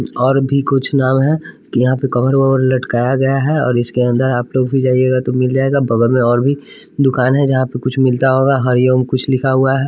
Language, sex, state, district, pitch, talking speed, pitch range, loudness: Hindi, male, Bihar, West Champaran, 130 Hz, 230 wpm, 125-135 Hz, -14 LUFS